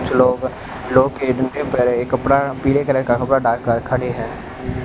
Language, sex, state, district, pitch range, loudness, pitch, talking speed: Hindi, male, Haryana, Rohtak, 125-135 Hz, -18 LUFS, 130 Hz, 150 wpm